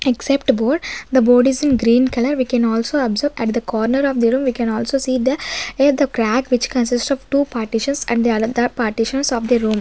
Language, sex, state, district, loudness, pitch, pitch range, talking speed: English, female, Maharashtra, Gondia, -17 LUFS, 250 Hz, 230-270 Hz, 225 wpm